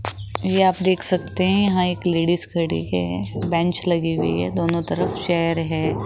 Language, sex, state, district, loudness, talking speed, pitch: Hindi, female, Rajasthan, Jaipur, -20 LUFS, 180 wpm, 170 Hz